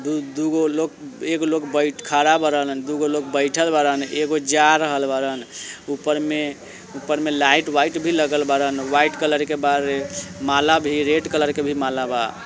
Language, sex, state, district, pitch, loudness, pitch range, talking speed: Bajjika, male, Bihar, Vaishali, 150 Hz, -20 LUFS, 140-155 Hz, 175 wpm